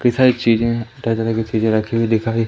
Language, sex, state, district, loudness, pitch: Hindi, male, Madhya Pradesh, Umaria, -18 LUFS, 115 Hz